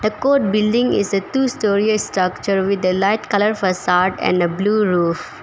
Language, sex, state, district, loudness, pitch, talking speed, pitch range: English, female, Arunachal Pradesh, Papum Pare, -17 LUFS, 200 Hz, 175 wpm, 185-215 Hz